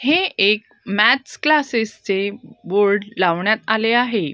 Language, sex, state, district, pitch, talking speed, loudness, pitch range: Marathi, female, Maharashtra, Gondia, 215 Hz, 125 wpm, -18 LUFS, 200-245 Hz